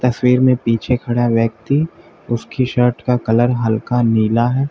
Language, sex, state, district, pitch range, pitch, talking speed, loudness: Hindi, male, Uttar Pradesh, Lalitpur, 115-125 Hz, 120 Hz, 150 wpm, -16 LUFS